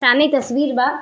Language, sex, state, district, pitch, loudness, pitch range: Bhojpuri, female, Uttar Pradesh, Ghazipur, 275 Hz, -17 LUFS, 250-290 Hz